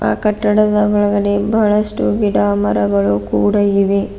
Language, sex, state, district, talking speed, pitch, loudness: Kannada, female, Karnataka, Bidar, 115 wpm, 200 Hz, -15 LUFS